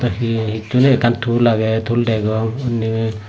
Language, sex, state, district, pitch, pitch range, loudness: Chakma, male, Tripura, Dhalai, 115 Hz, 110-120 Hz, -17 LUFS